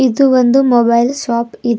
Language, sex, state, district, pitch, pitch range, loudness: Kannada, female, Karnataka, Bidar, 245 Hz, 235-265 Hz, -12 LUFS